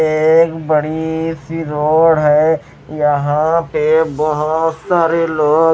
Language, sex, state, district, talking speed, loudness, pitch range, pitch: Hindi, male, Chandigarh, Chandigarh, 115 wpm, -14 LUFS, 150-160 Hz, 155 Hz